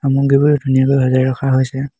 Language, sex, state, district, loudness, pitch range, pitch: Assamese, male, Assam, Hailakandi, -14 LUFS, 130-140 Hz, 135 Hz